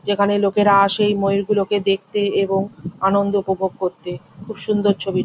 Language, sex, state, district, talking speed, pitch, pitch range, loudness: Bengali, female, West Bengal, Jhargram, 150 wpm, 200 Hz, 195-205 Hz, -19 LUFS